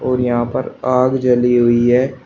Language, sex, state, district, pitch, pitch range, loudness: Hindi, male, Uttar Pradesh, Shamli, 125 Hz, 120-130 Hz, -15 LUFS